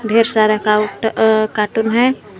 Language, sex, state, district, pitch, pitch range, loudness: Hindi, female, Jharkhand, Garhwa, 220 Hz, 210-225 Hz, -15 LUFS